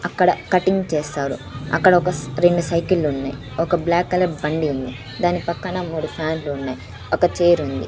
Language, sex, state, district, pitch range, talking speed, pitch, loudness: Telugu, female, Andhra Pradesh, Sri Satya Sai, 140-175 Hz, 170 wpm, 160 Hz, -20 LUFS